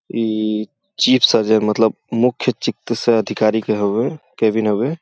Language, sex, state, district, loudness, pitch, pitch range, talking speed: Bhojpuri, male, Uttar Pradesh, Gorakhpur, -17 LUFS, 110 Hz, 110-120 Hz, 130 wpm